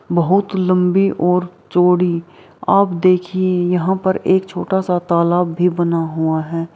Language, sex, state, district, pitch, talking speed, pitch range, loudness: Hindi, female, Bihar, Araria, 180 Hz, 135 wpm, 170-185 Hz, -16 LUFS